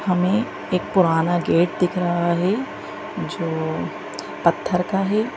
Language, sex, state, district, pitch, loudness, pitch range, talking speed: Hindi, female, Madhya Pradesh, Bhopal, 180 Hz, -22 LUFS, 175-195 Hz, 125 wpm